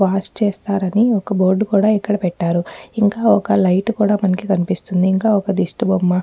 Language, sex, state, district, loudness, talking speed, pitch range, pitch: Telugu, female, Telangana, Nalgonda, -17 LUFS, 145 wpm, 185-210 Hz, 195 Hz